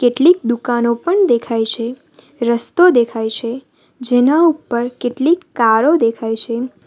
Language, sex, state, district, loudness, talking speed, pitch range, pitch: Gujarati, female, Gujarat, Valsad, -15 LUFS, 120 wpm, 230-285 Hz, 240 Hz